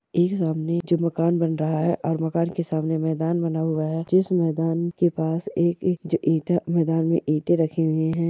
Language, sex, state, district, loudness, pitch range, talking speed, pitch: Hindi, female, Bihar, Jahanabad, -23 LUFS, 160-170 Hz, 200 wpm, 165 Hz